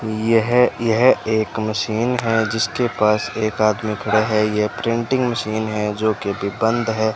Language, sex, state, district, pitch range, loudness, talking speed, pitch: Hindi, male, Rajasthan, Bikaner, 110-115 Hz, -19 LUFS, 160 wpm, 110 Hz